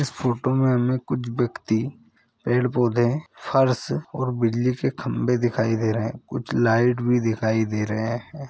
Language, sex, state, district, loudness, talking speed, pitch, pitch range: Hindi, male, Bihar, Saran, -23 LUFS, 160 wpm, 120 Hz, 115-130 Hz